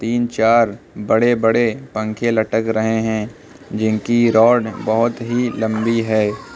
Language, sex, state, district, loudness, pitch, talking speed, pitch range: Hindi, male, Uttar Pradesh, Lucknow, -17 LUFS, 115 Hz, 130 wpm, 110-120 Hz